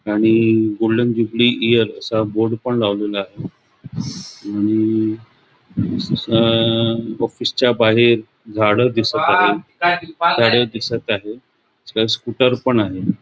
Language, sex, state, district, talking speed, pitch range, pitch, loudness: Marathi, male, Goa, North and South Goa, 100 wpm, 110-120 Hz, 115 Hz, -17 LUFS